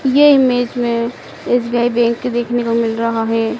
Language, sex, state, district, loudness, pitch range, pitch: Hindi, female, Madhya Pradesh, Dhar, -15 LUFS, 230-245 Hz, 240 Hz